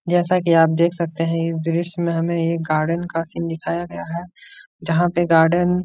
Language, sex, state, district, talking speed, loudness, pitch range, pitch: Hindi, male, Uttar Pradesh, Etah, 215 wpm, -20 LUFS, 165-175 Hz, 170 Hz